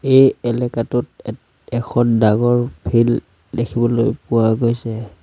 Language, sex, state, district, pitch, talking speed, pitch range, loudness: Assamese, male, Assam, Sonitpur, 120 Hz, 105 wpm, 110-120 Hz, -17 LUFS